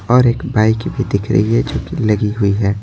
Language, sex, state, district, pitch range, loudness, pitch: Hindi, male, Bihar, Patna, 105-120 Hz, -16 LUFS, 110 Hz